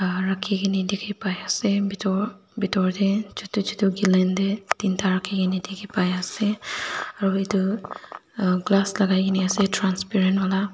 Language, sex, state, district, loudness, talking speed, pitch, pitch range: Nagamese, female, Nagaland, Dimapur, -23 LUFS, 125 wpm, 195 Hz, 190-205 Hz